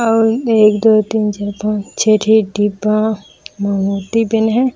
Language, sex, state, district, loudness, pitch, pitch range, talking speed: Chhattisgarhi, female, Chhattisgarh, Raigarh, -14 LUFS, 215 Hz, 205-225 Hz, 165 wpm